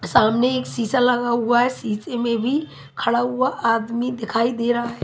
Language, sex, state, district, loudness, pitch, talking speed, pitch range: Hindi, female, Himachal Pradesh, Shimla, -21 LUFS, 240 Hz, 180 wpm, 230-250 Hz